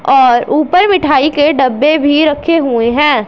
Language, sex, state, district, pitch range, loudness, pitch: Hindi, female, Punjab, Pathankot, 265-310 Hz, -10 LUFS, 295 Hz